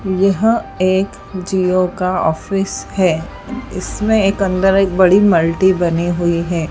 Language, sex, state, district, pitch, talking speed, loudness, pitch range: Hindi, female, Madhya Pradesh, Dhar, 185 Hz, 135 wpm, -15 LUFS, 175-195 Hz